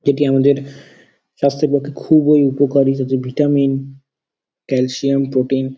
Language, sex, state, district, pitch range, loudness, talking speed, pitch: Bengali, male, West Bengal, Dakshin Dinajpur, 135-140 Hz, -16 LUFS, 115 wpm, 140 Hz